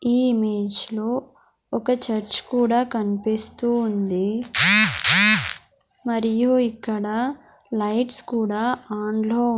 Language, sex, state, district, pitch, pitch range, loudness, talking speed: Telugu, female, Andhra Pradesh, Sri Satya Sai, 225 Hz, 210-240 Hz, -20 LUFS, 90 wpm